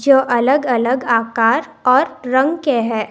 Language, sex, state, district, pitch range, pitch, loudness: Hindi, female, Karnataka, Bangalore, 235-275 Hz, 255 Hz, -16 LUFS